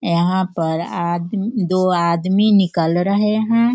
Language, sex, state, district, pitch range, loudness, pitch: Hindi, female, Bihar, Sitamarhi, 170-210 Hz, -17 LUFS, 185 Hz